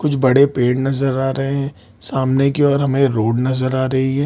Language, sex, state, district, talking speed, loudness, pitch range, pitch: Hindi, male, Bihar, Lakhisarai, 240 wpm, -17 LUFS, 130-140 Hz, 135 Hz